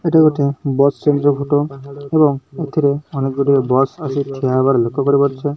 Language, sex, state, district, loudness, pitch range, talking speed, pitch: Odia, male, Odisha, Malkangiri, -16 LUFS, 135-145 Hz, 160 wpm, 140 Hz